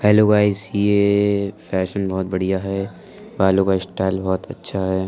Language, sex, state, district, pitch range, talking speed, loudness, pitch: Hindi, male, Uttar Pradesh, Budaun, 95-100 Hz, 165 wpm, -20 LUFS, 95 Hz